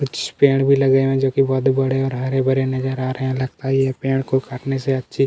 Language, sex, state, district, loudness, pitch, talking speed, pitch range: Hindi, male, Chhattisgarh, Kabirdham, -19 LUFS, 135 Hz, 275 wpm, 130-135 Hz